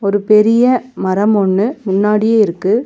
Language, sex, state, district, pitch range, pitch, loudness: Tamil, female, Tamil Nadu, Nilgiris, 200-225 Hz, 210 Hz, -13 LUFS